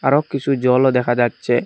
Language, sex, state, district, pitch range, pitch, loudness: Bengali, male, Assam, Hailakandi, 120-140 Hz, 130 Hz, -17 LUFS